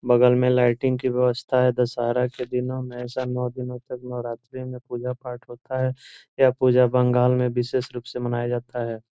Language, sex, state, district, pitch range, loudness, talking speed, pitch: Hindi, male, Bihar, Gopalganj, 120-125 Hz, -23 LUFS, 190 wpm, 125 Hz